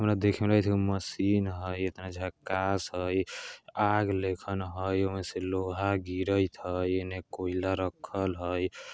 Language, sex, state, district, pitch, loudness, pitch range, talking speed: Bajjika, male, Bihar, Vaishali, 95 Hz, -31 LUFS, 90-100 Hz, 155 wpm